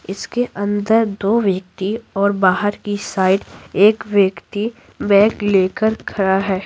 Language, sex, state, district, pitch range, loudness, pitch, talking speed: Hindi, female, Bihar, Patna, 195-210 Hz, -17 LUFS, 200 Hz, 125 wpm